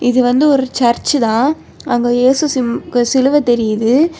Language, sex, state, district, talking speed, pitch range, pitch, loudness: Tamil, female, Tamil Nadu, Kanyakumari, 145 wpm, 240-280 Hz, 250 Hz, -13 LUFS